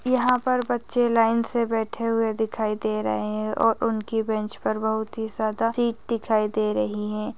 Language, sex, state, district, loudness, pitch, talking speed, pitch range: Hindi, female, Chhattisgarh, Bastar, -24 LUFS, 225 Hz, 195 wpm, 215-230 Hz